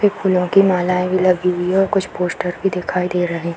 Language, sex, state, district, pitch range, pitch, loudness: Hindi, female, Bihar, Darbhanga, 180-190 Hz, 180 Hz, -17 LUFS